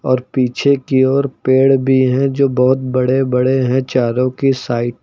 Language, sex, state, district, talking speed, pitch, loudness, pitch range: Hindi, male, Uttar Pradesh, Lucknow, 190 wpm, 130 Hz, -15 LUFS, 125-135 Hz